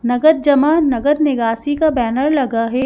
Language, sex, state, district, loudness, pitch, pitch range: Hindi, female, Madhya Pradesh, Bhopal, -15 LUFS, 280 Hz, 245-300 Hz